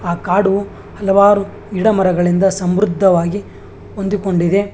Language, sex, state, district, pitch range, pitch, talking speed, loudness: Kannada, male, Karnataka, Bangalore, 180-200 Hz, 195 Hz, 90 wpm, -15 LUFS